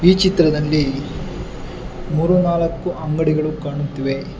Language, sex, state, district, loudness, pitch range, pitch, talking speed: Kannada, male, Karnataka, Bangalore, -19 LUFS, 145-170 Hz, 155 Hz, 80 wpm